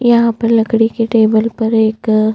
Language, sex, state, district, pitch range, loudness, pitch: Hindi, female, Chhattisgarh, Bastar, 220-230 Hz, -13 LUFS, 225 Hz